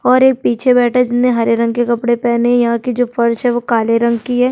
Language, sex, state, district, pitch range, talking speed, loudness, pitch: Hindi, female, Chhattisgarh, Sukma, 235-250 Hz, 290 wpm, -14 LUFS, 240 Hz